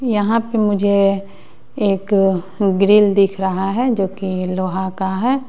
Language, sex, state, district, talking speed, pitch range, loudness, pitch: Hindi, female, Bihar, West Champaran, 140 wpm, 190-210 Hz, -17 LUFS, 195 Hz